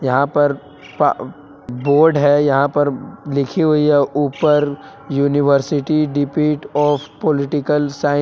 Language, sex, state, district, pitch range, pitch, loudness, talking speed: Hindi, male, Jharkhand, Palamu, 140-150 Hz, 145 Hz, -16 LUFS, 125 wpm